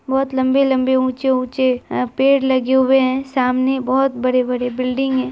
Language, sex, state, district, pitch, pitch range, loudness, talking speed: Hindi, female, Bihar, Saharsa, 260 Hz, 255-265 Hz, -17 LUFS, 145 wpm